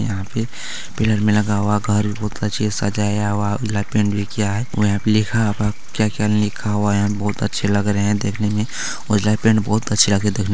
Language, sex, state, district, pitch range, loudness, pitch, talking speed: Hindi, male, Bihar, Lakhisarai, 100-105 Hz, -19 LUFS, 105 Hz, 255 wpm